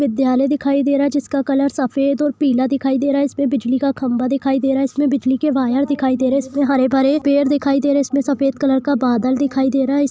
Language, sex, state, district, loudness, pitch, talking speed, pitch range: Hindi, female, Jharkhand, Jamtara, -17 LUFS, 275 Hz, 285 wpm, 265-280 Hz